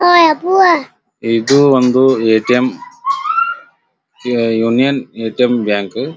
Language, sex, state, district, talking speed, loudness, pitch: Kannada, male, Karnataka, Dharwad, 70 wpm, -13 LUFS, 130 Hz